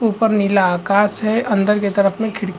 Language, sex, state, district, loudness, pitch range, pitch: Hindi, male, Chhattisgarh, Raigarh, -16 LUFS, 200-220 Hz, 205 Hz